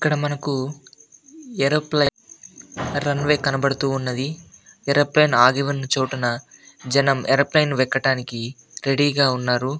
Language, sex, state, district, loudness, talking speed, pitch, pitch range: Telugu, male, Andhra Pradesh, Anantapur, -20 LUFS, 100 wpm, 140 Hz, 130-145 Hz